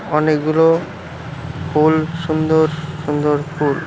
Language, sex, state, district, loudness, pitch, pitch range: Bengali, male, West Bengal, Cooch Behar, -17 LUFS, 155 Hz, 150-160 Hz